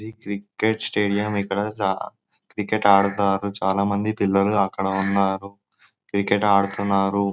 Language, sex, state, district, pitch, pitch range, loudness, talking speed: Telugu, male, Andhra Pradesh, Anantapur, 100 Hz, 100-105 Hz, -22 LUFS, 105 wpm